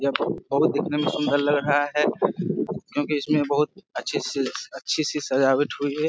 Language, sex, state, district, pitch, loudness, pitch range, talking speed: Hindi, male, Bihar, Jamui, 145 Hz, -24 LUFS, 145-150 Hz, 185 wpm